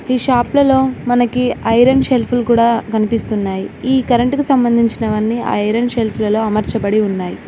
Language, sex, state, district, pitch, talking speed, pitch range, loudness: Telugu, female, Telangana, Mahabubabad, 235 Hz, 135 wpm, 220-250 Hz, -15 LUFS